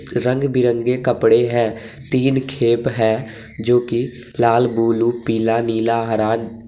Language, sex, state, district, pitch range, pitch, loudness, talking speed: Hindi, male, Jharkhand, Deoghar, 115-125 Hz, 115 Hz, -18 LUFS, 135 wpm